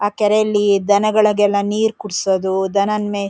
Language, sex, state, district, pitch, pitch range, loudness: Kannada, female, Karnataka, Shimoga, 205 Hz, 200-210 Hz, -16 LUFS